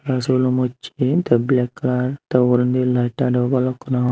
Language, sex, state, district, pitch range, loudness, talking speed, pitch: Chakma, male, Tripura, Unakoti, 125-130 Hz, -19 LUFS, 175 wpm, 125 Hz